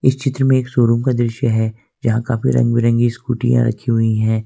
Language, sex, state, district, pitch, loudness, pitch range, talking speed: Hindi, male, Jharkhand, Ranchi, 120 Hz, -17 LUFS, 115-125 Hz, 200 wpm